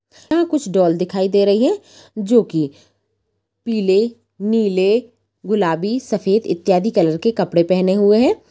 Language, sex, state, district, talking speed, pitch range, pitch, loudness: Hindi, female, Bihar, Saran, 140 wpm, 180-225 Hz, 200 Hz, -17 LUFS